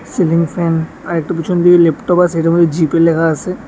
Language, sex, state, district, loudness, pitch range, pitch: Bengali, male, Tripura, West Tripura, -13 LUFS, 165-175 Hz, 170 Hz